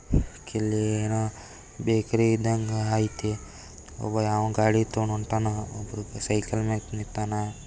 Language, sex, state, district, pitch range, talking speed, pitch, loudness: Kannada, female, Karnataka, Bijapur, 105-110 Hz, 115 wpm, 110 Hz, -27 LUFS